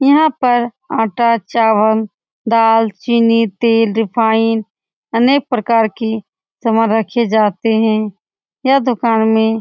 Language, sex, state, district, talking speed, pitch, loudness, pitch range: Hindi, female, Bihar, Saran, 120 wpm, 225 Hz, -14 LUFS, 220-235 Hz